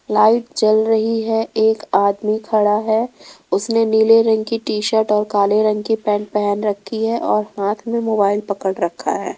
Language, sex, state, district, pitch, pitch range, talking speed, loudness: Hindi, female, Rajasthan, Jaipur, 215 Hz, 210-225 Hz, 185 wpm, -17 LUFS